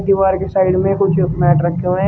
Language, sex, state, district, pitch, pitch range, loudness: Hindi, male, Uttar Pradesh, Shamli, 185 Hz, 175-195 Hz, -15 LUFS